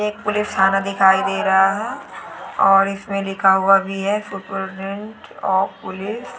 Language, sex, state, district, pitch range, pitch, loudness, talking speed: Hindi, female, West Bengal, Dakshin Dinajpur, 195-205 Hz, 195 Hz, -18 LUFS, 160 wpm